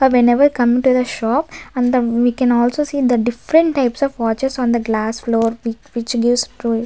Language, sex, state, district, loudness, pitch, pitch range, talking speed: English, female, Maharashtra, Gondia, -17 LUFS, 245 Hz, 235-265 Hz, 210 wpm